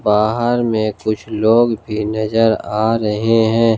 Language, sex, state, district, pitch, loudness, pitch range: Hindi, male, Jharkhand, Ranchi, 110 Hz, -16 LUFS, 110-115 Hz